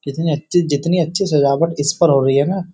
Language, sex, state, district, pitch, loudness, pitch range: Hindi, male, Uttar Pradesh, Jyotiba Phule Nagar, 165 Hz, -16 LUFS, 145-175 Hz